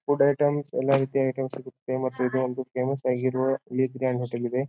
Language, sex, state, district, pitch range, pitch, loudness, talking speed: Kannada, male, Karnataka, Bijapur, 130-135 Hz, 130 Hz, -26 LUFS, 190 wpm